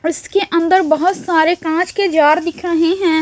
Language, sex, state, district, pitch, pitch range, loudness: Hindi, female, Chhattisgarh, Raipur, 335 Hz, 320-365 Hz, -15 LUFS